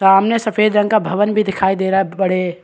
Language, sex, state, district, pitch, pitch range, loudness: Hindi, male, Maharashtra, Chandrapur, 195 Hz, 190-210 Hz, -16 LUFS